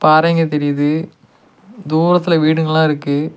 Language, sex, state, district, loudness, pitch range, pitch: Tamil, male, Tamil Nadu, Nilgiris, -15 LUFS, 150-165 Hz, 160 Hz